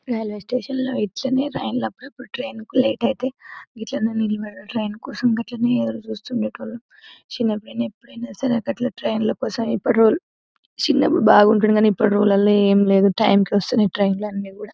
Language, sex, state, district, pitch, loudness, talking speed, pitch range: Telugu, female, Telangana, Nalgonda, 225 Hz, -20 LUFS, 130 wpm, 210-255 Hz